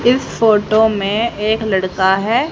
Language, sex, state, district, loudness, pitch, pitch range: Hindi, female, Haryana, Jhajjar, -15 LUFS, 215 Hz, 195-225 Hz